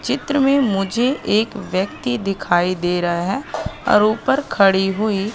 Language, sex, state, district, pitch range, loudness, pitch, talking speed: Hindi, female, Madhya Pradesh, Katni, 190-250 Hz, -18 LUFS, 205 Hz, 145 wpm